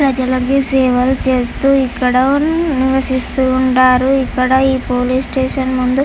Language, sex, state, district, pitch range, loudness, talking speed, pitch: Telugu, female, Andhra Pradesh, Chittoor, 255-270 Hz, -14 LUFS, 120 wpm, 260 Hz